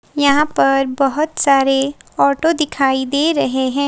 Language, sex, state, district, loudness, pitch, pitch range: Hindi, female, Himachal Pradesh, Shimla, -16 LUFS, 280 Hz, 270-300 Hz